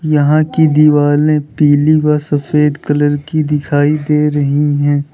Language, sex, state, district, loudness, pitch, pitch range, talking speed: Hindi, male, Uttar Pradesh, Lalitpur, -12 LUFS, 150 Hz, 145-150 Hz, 140 wpm